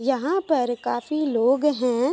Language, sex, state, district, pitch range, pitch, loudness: Hindi, female, Uttar Pradesh, Ghazipur, 245-305 Hz, 270 Hz, -23 LUFS